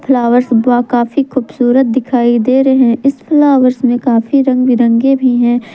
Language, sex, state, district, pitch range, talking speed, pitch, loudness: Hindi, female, Jharkhand, Ranchi, 240-265 Hz, 165 wpm, 250 Hz, -11 LUFS